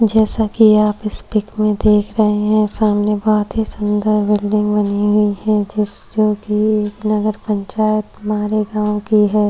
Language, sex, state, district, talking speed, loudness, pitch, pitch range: Hindi, female, Maharashtra, Chandrapur, 150 wpm, -16 LUFS, 210 Hz, 210-215 Hz